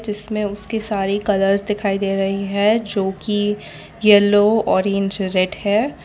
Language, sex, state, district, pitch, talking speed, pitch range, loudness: Hindi, female, Gujarat, Valsad, 205 Hz, 140 wpm, 195-210 Hz, -18 LUFS